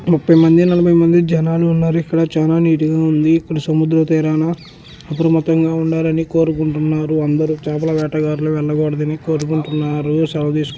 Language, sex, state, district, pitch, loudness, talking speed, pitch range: Telugu, male, Andhra Pradesh, Krishna, 160 Hz, -15 LUFS, 120 wpm, 155-165 Hz